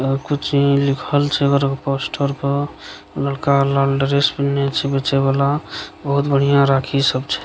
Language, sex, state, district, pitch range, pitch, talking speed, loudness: Maithili, male, Bihar, Begusarai, 135-140 Hz, 140 Hz, 160 wpm, -18 LUFS